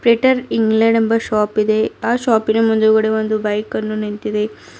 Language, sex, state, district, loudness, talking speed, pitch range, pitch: Kannada, female, Karnataka, Bidar, -16 LUFS, 140 wpm, 215-225 Hz, 220 Hz